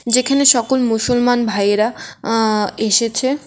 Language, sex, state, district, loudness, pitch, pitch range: Bengali, female, West Bengal, Alipurduar, -15 LUFS, 235 Hz, 220-255 Hz